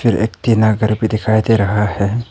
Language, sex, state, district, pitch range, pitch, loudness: Hindi, male, Arunachal Pradesh, Papum Pare, 105-115 Hz, 110 Hz, -15 LUFS